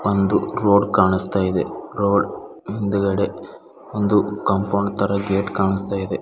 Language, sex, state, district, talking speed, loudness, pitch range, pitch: Kannada, male, Karnataka, Bidar, 115 wpm, -20 LUFS, 95-100 Hz, 100 Hz